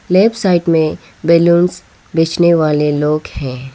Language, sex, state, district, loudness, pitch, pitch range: Hindi, female, Arunachal Pradesh, Lower Dibang Valley, -14 LUFS, 165 Hz, 150-175 Hz